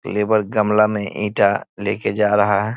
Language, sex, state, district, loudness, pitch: Hindi, male, Bihar, East Champaran, -18 LUFS, 105 Hz